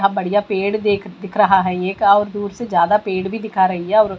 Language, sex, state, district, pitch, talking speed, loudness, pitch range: Hindi, female, Bihar, West Champaran, 200 Hz, 245 wpm, -17 LUFS, 190-205 Hz